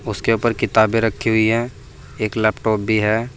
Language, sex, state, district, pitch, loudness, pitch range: Hindi, male, Uttar Pradesh, Saharanpur, 110 Hz, -18 LUFS, 110-115 Hz